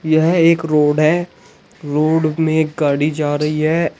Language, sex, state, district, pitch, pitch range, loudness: Hindi, male, Uttar Pradesh, Shamli, 155 Hz, 150-160 Hz, -16 LUFS